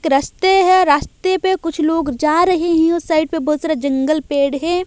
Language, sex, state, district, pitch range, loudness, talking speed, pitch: Hindi, female, Odisha, Malkangiri, 300-360 Hz, -16 LUFS, 195 wpm, 320 Hz